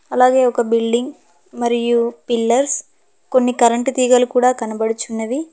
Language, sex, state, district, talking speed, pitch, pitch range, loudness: Telugu, female, Telangana, Hyderabad, 95 wpm, 240 Hz, 235-255 Hz, -17 LUFS